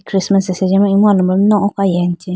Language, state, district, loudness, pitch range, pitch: Idu Mishmi, Arunachal Pradesh, Lower Dibang Valley, -13 LUFS, 185-200 Hz, 195 Hz